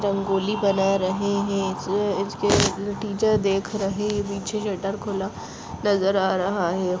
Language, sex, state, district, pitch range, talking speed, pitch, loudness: Hindi, female, Goa, North and South Goa, 195-205 Hz, 130 wpm, 195 Hz, -23 LUFS